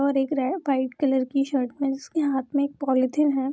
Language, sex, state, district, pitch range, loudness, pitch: Hindi, female, Bihar, Vaishali, 265-280 Hz, -24 LUFS, 275 Hz